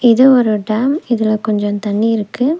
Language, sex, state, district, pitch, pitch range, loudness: Tamil, female, Tamil Nadu, Nilgiris, 225 Hz, 215-250 Hz, -14 LUFS